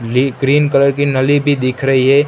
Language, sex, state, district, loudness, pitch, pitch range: Hindi, male, Gujarat, Gandhinagar, -13 LUFS, 135 Hz, 130-145 Hz